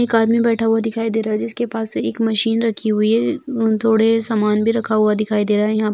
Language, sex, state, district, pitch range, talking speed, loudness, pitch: Bhojpuri, female, Bihar, Saran, 215-225 Hz, 250 wpm, -17 LUFS, 225 Hz